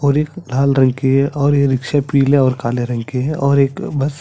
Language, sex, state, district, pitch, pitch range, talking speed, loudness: Hindi, male, Chhattisgarh, Sarguja, 140 Hz, 130-145 Hz, 270 wpm, -16 LUFS